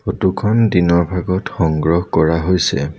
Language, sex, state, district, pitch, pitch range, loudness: Assamese, male, Assam, Sonitpur, 90 Hz, 80-95 Hz, -16 LUFS